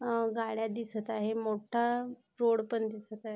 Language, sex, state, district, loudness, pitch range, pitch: Marathi, female, Maharashtra, Aurangabad, -33 LUFS, 220-235 Hz, 225 Hz